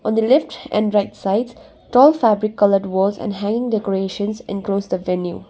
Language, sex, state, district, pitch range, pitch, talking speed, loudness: English, female, Sikkim, Gangtok, 195-225 Hz, 210 Hz, 175 wpm, -18 LUFS